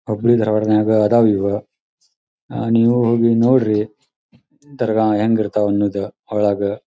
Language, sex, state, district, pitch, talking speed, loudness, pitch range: Kannada, male, Karnataka, Dharwad, 110 Hz, 105 wpm, -17 LUFS, 105-115 Hz